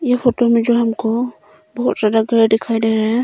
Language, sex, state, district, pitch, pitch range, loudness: Hindi, female, Arunachal Pradesh, Longding, 230 Hz, 225-240 Hz, -16 LUFS